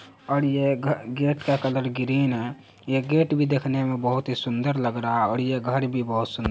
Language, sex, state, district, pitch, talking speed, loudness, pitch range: Hindi, male, Bihar, Araria, 130 Hz, 230 wpm, -24 LUFS, 120-140 Hz